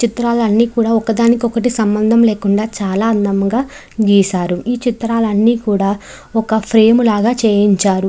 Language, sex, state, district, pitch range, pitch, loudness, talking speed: Telugu, female, Andhra Pradesh, Chittoor, 205-235 Hz, 225 Hz, -14 LUFS, 135 wpm